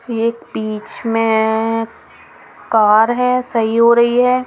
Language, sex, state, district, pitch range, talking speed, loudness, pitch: Hindi, female, Punjab, Kapurthala, 220-240 Hz, 120 wpm, -15 LUFS, 230 Hz